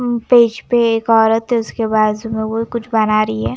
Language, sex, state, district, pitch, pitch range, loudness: Hindi, female, Himachal Pradesh, Shimla, 225 Hz, 220-235 Hz, -15 LUFS